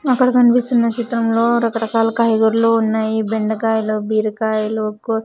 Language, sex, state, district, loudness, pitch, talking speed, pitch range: Telugu, female, Andhra Pradesh, Sri Satya Sai, -17 LUFS, 225 Hz, 105 wpm, 220-230 Hz